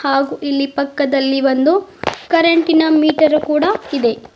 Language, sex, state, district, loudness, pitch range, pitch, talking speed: Kannada, female, Karnataka, Bidar, -15 LUFS, 275-325 Hz, 300 Hz, 125 wpm